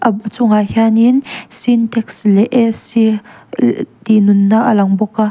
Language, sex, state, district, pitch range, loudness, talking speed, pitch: Mizo, female, Mizoram, Aizawl, 210-230 Hz, -13 LUFS, 160 wpm, 220 Hz